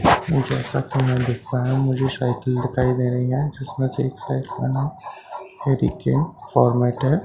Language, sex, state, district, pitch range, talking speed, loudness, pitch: Hindi, male, Bihar, Katihar, 125-135 Hz, 150 wpm, -22 LUFS, 130 Hz